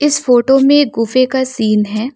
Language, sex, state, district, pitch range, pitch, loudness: Hindi, female, Arunachal Pradesh, Lower Dibang Valley, 230-270 Hz, 255 Hz, -12 LUFS